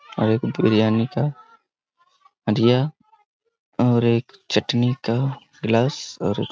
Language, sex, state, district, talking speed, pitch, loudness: Hindi, male, Jharkhand, Sahebganj, 110 wpm, 125 Hz, -21 LUFS